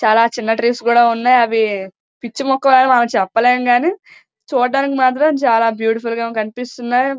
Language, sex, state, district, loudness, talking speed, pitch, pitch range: Telugu, female, Andhra Pradesh, Srikakulam, -15 LUFS, 140 wpm, 240 Hz, 230-260 Hz